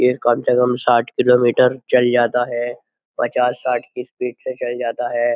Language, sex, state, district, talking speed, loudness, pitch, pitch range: Hindi, male, Uttar Pradesh, Jyotiba Phule Nagar, 190 wpm, -18 LUFS, 125 Hz, 120-125 Hz